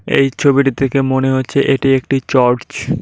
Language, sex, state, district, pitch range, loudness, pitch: Bengali, male, West Bengal, Cooch Behar, 130-140 Hz, -14 LUFS, 135 Hz